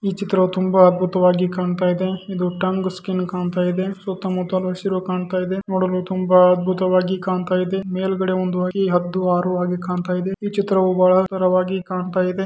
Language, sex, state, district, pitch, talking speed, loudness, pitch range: Kannada, male, Karnataka, Dharwad, 185 Hz, 165 wpm, -20 LUFS, 180-190 Hz